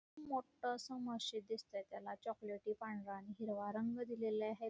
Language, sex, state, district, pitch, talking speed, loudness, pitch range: Marathi, female, Karnataka, Belgaum, 225 Hz, 155 wpm, -45 LUFS, 215-245 Hz